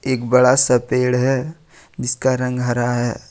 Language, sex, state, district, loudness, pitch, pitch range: Hindi, male, Jharkhand, Ranchi, -18 LUFS, 125 Hz, 125-130 Hz